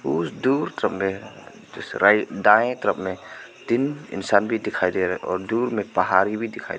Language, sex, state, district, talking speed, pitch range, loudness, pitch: Hindi, male, Arunachal Pradesh, Papum Pare, 195 wpm, 95-115 Hz, -22 LUFS, 105 Hz